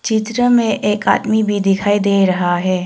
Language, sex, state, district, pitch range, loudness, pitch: Hindi, female, Arunachal Pradesh, Longding, 190-220 Hz, -15 LUFS, 205 Hz